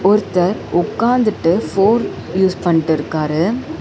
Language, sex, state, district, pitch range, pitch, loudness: Tamil, female, Tamil Nadu, Chennai, 165-215 Hz, 185 Hz, -16 LUFS